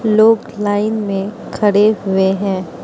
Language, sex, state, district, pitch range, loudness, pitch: Hindi, female, Mizoram, Aizawl, 195-215 Hz, -15 LUFS, 205 Hz